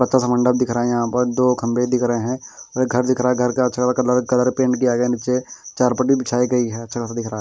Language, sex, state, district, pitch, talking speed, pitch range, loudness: Hindi, male, Bihar, West Champaran, 125 Hz, 285 wpm, 120-125 Hz, -19 LUFS